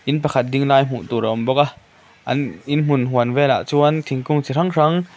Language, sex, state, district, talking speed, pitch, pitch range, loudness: Mizo, male, Mizoram, Aizawl, 220 wpm, 140 Hz, 130-150 Hz, -18 LUFS